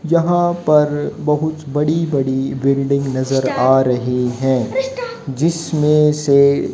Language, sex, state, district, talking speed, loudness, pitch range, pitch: Hindi, male, Haryana, Jhajjar, 105 wpm, -16 LUFS, 135-160 Hz, 145 Hz